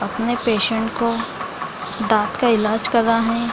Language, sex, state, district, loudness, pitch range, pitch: Hindi, female, Bihar, Gaya, -19 LUFS, 225-235 Hz, 230 Hz